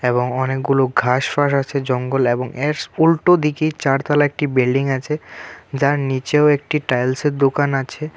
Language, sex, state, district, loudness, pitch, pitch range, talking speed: Bengali, male, Tripura, West Tripura, -18 LUFS, 140 Hz, 130-150 Hz, 130 wpm